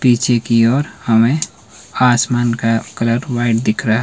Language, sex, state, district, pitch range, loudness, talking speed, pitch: Hindi, male, Himachal Pradesh, Shimla, 115-125 Hz, -15 LUFS, 150 wpm, 115 Hz